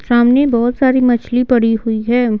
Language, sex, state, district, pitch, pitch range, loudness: Hindi, female, Bihar, Patna, 245 Hz, 230-250 Hz, -13 LUFS